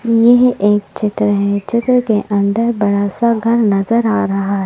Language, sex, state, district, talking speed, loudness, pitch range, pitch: Hindi, female, Madhya Pradesh, Bhopal, 165 wpm, -14 LUFS, 200-235 Hz, 210 Hz